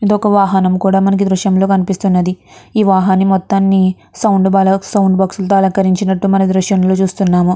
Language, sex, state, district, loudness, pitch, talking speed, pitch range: Telugu, female, Andhra Pradesh, Guntur, -13 LUFS, 190 Hz, 135 wpm, 190-195 Hz